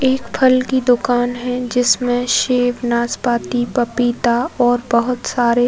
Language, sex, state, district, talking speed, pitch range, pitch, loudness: Hindi, female, Uttar Pradesh, Varanasi, 135 wpm, 240-250 Hz, 245 Hz, -17 LUFS